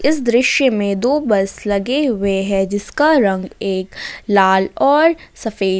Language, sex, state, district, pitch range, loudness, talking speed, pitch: Hindi, female, Jharkhand, Ranchi, 195-270 Hz, -16 LUFS, 145 wpm, 205 Hz